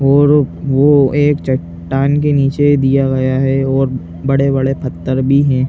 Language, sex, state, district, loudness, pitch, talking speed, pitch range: Hindi, male, Uttar Pradesh, Etah, -13 LUFS, 135 Hz, 150 wpm, 130-140 Hz